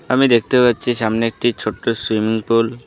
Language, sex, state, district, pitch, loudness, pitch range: Bengali, male, West Bengal, Alipurduar, 115 Hz, -17 LUFS, 110-120 Hz